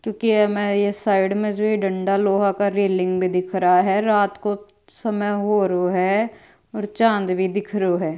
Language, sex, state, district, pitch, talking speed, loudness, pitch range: Marwari, female, Rajasthan, Churu, 200 Hz, 185 wpm, -20 LUFS, 190-210 Hz